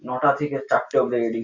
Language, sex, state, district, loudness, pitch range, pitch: Bengali, female, West Bengal, Jhargram, -22 LUFS, 120-140 Hz, 125 Hz